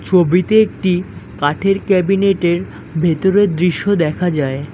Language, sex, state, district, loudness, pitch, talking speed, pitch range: Bengali, male, West Bengal, Alipurduar, -15 LUFS, 180 Hz, 100 wpm, 160-195 Hz